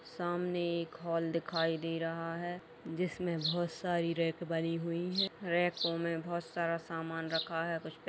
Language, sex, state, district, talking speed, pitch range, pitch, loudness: Hindi, female, Uttar Pradesh, Etah, 180 wpm, 165-175 Hz, 170 Hz, -36 LUFS